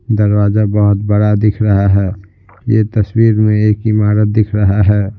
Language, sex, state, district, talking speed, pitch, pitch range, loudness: Hindi, male, Bihar, Patna, 160 wpm, 105 Hz, 100-110 Hz, -12 LUFS